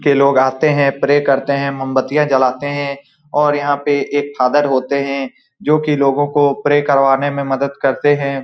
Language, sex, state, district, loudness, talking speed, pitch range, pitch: Hindi, male, Bihar, Saran, -15 LUFS, 185 wpm, 135-145 Hz, 140 Hz